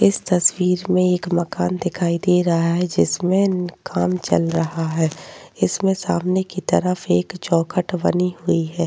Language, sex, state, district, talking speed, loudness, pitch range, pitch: Hindi, female, Uttar Pradesh, Jyotiba Phule Nagar, 155 wpm, -20 LUFS, 165-180 Hz, 180 Hz